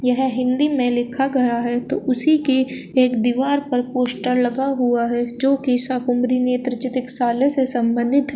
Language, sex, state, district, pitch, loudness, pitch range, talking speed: Hindi, female, Uttar Pradesh, Shamli, 250 Hz, -18 LUFS, 245-265 Hz, 170 wpm